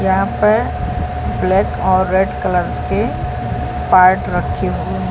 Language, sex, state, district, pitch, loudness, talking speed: Hindi, female, Chhattisgarh, Balrampur, 185 Hz, -16 LUFS, 130 wpm